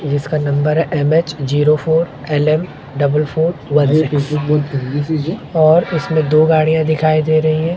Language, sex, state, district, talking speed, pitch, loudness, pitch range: Hindi, male, Maharashtra, Mumbai Suburban, 145 wpm, 155 Hz, -15 LUFS, 145-160 Hz